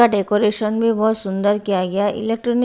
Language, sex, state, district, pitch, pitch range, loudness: Hindi, female, Haryana, Rohtak, 215 Hz, 205-225 Hz, -19 LUFS